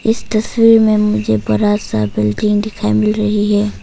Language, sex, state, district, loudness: Hindi, female, Arunachal Pradesh, Papum Pare, -14 LUFS